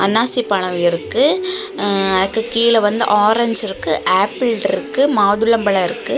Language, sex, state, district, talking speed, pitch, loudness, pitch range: Tamil, female, Tamil Nadu, Kanyakumari, 125 wpm, 220 Hz, -15 LUFS, 195-235 Hz